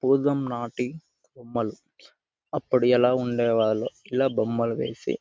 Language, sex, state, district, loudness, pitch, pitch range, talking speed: Telugu, male, Telangana, Nalgonda, -25 LUFS, 125 Hz, 115-130 Hz, 105 wpm